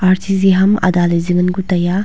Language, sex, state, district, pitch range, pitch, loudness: Wancho, female, Arunachal Pradesh, Longding, 175-195 Hz, 185 Hz, -14 LUFS